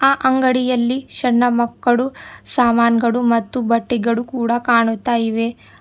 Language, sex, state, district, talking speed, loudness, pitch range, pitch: Kannada, female, Karnataka, Bidar, 115 wpm, -17 LUFS, 235-250 Hz, 240 Hz